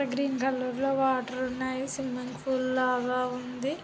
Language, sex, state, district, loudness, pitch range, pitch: Telugu, male, Andhra Pradesh, Guntur, -30 LUFS, 250-270 Hz, 260 Hz